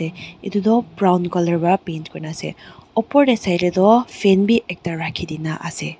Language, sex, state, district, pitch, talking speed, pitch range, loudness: Nagamese, female, Nagaland, Dimapur, 180 Hz, 190 wpm, 170-210 Hz, -19 LUFS